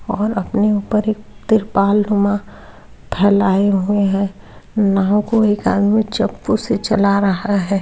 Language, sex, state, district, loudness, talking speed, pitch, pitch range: Hindi, male, Uttar Pradesh, Varanasi, -16 LUFS, 140 wpm, 205 Hz, 200-215 Hz